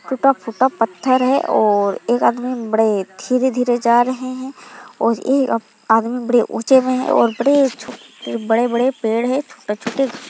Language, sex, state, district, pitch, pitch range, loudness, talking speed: Hindi, female, Bihar, Muzaffarpur, 240 Hz, 225-260 Hz, -17 LUFS, 155 wpm